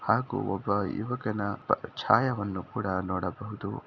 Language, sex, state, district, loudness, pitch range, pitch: Kannada, male, Karnataka, Shimoga, -30 LUFS, 95-115 Hz, 100 Hz